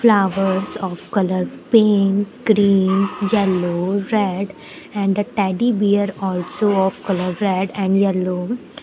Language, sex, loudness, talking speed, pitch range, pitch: English, female, -18 LUFS, 120 wpm, 190-205 Hz, 195 Hz